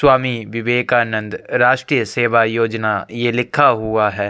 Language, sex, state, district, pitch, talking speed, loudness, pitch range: Hindi, male, Chhattisgarh, Korba, 115 Hz, 125 wpm, -17 LUFS, 110-120 Hz